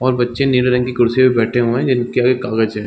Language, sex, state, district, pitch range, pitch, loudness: Hindi, male, Chhattisgarh, Bilaspur, 120-125 Hz, 125 Hz, -15 LUFS